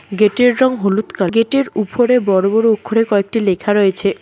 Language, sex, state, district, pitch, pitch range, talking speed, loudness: Bengali, female, West Bengal, Cooch Behar, 215 Hz, 200-240 Hz, 200 wpm, -15 LUFS